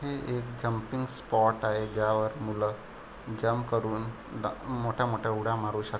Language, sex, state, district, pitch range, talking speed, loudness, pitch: Marathi, male, Maharashtra, Pune, 110-120 Hz, 150 wpm, -31 LUFS, 110 Hz